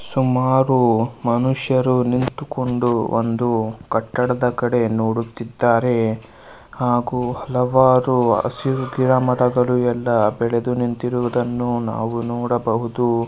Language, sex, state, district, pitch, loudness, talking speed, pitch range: Kannada, male, Karnataka, Mysore, 120 Hz, -19 LUFS, 75 wpm, 115-125 Hz